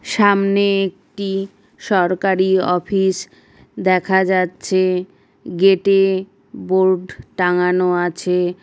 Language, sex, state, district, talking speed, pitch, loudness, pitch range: Bengali, female, West Bengal, Paschim Medinipur, 75 wpm, 190 Hz, -17 LUFS, 180-195 Hz